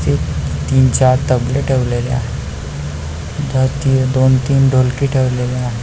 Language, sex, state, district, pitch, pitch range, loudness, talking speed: Marathi, male, Maharashtra, Pune, 125 Hz, 80-130 Hz, -16 LUFS, 115 wpm